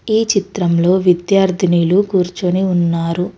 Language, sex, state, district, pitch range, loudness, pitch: Telugu, female, Telangana, Hyderabad, 175-195 Hz, -15 LUFS, 185 Hz